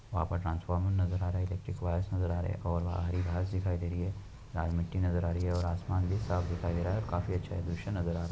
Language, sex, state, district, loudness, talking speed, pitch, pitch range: Hindi, male, Uttar Pradesh, Hamirpur, -34 LUFS, 290 wpm, 90 Hz, 85-95 Hz